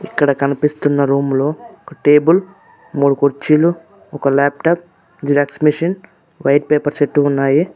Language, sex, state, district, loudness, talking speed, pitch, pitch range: Telugu, male, Telangana, Mahabubabad, -15 LUFS, 125 wpm, 145 Hz, 140-165 Hz